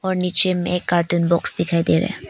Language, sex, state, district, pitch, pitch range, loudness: Hindi, female, Arunachal Pradesh, Papum Pare, 175 Hz, 170-185 Hz, -17 LUFS